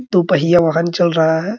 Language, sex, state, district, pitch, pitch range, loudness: Hindi, male, Bihar, Araria, 175 Hz, 165-180 Hz, -14 LUFS